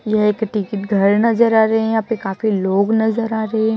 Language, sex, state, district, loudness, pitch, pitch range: Hindi, female, Chhattisgarh, Raipur, -17 LUFS, 220 Hz, 210-225 Hz